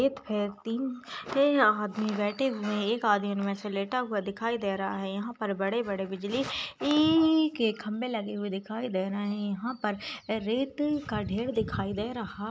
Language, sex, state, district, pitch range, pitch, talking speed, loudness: Hindi, female, Maharashtra, Aurangabad, 205-250 Hz, 215 Hz, 170 wpm, -30 LUFS